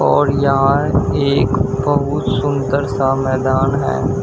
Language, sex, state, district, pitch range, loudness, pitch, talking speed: Hindi, male, Uttar Pradesh, Shamli, 130-140 Hz, -16 LUFS, 135 Hz, 115 wpm